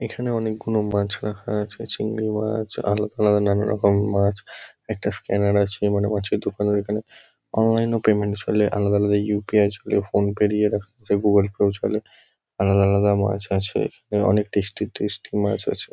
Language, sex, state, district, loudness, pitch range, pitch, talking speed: Bengali, male, West Bengal, Kolkata, -22 LUFS, 100-105 Hz, 105 Hz, 195 wpm